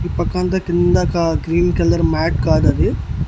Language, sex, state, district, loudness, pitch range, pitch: Telugu, male, Andhra Pradesh, Annamaya, -17 LUFS, 170-180 Hz, 175 Hz